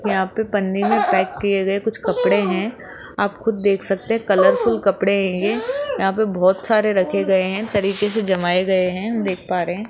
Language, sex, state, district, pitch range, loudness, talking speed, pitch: Hindi, female, Rajasthan, Jaipur, 190-220 Hz, -19 LUFS, 220 wpm, 200 Hz